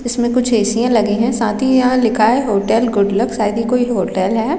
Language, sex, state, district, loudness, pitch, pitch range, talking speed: Hindi, female, Chhattisgarh, Raigarh, -15 LUFS, 230 Hz, 215-245 Hz, 260 wpm